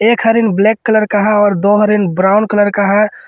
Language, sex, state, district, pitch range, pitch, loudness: Hindi, male, Jharkhand, Ranchi, 205-215 Hz, 210 Hz, -12 LUFS